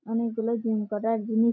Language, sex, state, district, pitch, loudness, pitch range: Bengali, female, West Bengal, Malda, 225 Hz, -27 LUFS, 220-230 Hz